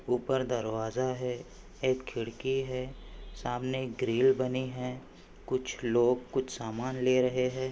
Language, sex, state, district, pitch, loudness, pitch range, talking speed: Hindi, male, Maharashtra, Pune, 125 Hz, -31 LUFS, 120-130 Hz, 130 wpm